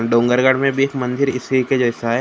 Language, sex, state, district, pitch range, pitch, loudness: Hindi, male, Maharashtra, Gondia, 120-135 Hz, 130 Hz, -17 LUFS